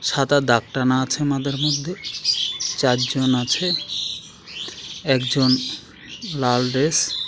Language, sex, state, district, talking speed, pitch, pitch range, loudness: Bengali, male, West Bengal, Alipurduar, 100 wpm, 135 Hz, 130-150 Hz, -21 LUFS